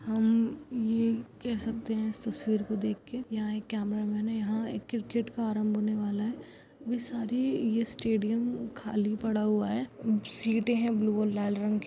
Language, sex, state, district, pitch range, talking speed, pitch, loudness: Hindi, female, Goa, North and South Goa, 215-230 Hz, 175 wpm, 220 Hz, -31 LUFS